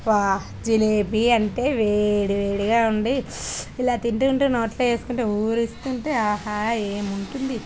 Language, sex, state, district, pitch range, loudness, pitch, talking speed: Telugu, female, Telangana, Nalgonda, 210-245 Hz, -22 LUFS, 225 Hz, 100 wpm